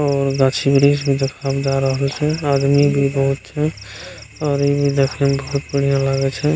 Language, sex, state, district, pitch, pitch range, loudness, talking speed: Maithili, male, Bihar, Begusarai, 140 Hz, 135-140 Hz, -18 LUFS, 185 wpm